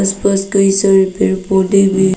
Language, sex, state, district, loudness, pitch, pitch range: Hindi, female, Arunachal Pradesh, Papum Pare, -13 LUFS, 195 Hz, 190-195 Hz